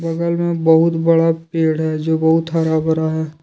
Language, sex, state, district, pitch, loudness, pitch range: Hindi, male, Jharkhand, Deoghar, 160 Hz, -16 LUFS, 160-165 Hz